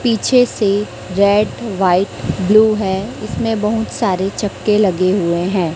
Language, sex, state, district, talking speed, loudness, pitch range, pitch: Hindi, female, Chhattisgarh, Raipur, 135 wpm, -16 LUFS, 190-215 Hz, 200 Hz